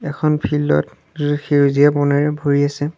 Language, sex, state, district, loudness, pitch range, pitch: Assamese, male, Assam, Sonitpur, -17 LUFS, 140-145 Hz, 145 Hz